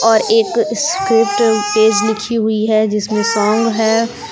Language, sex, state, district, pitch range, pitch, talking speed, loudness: Hindi, female, Jharkhand, Palamu, 215-230 Hz, 220 Hz, 140 wpm, -14 LUFS